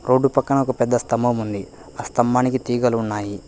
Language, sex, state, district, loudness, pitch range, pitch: Telugu, male, Telangana, Hyderabad, -20 LUFS, 110-130 Hz, 120 Hz